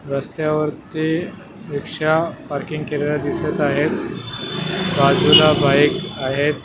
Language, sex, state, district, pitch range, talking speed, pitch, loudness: Marathi, male, Maharashtra, Mumbai Suburban, 145-155 Hz, 90 wpm, 150 Hz, -19 LUFS